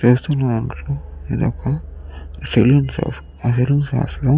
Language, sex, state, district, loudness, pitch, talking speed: Telugu, male, Andhra Pradesh, Chittoor, -19 LUFS, 120 Hz, 150 wpm